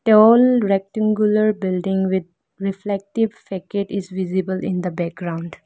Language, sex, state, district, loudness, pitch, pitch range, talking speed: English, female, Arunachal Pradesh, Lower Dibang Valley, -20 LUFS, 195 Hz, 185-215 Hz, 115 wpm